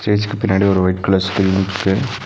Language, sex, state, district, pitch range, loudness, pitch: Tamil, male, Tamil Nadu, Nilgiris, 95-105 Hz, -16 LUFS, 95 Hz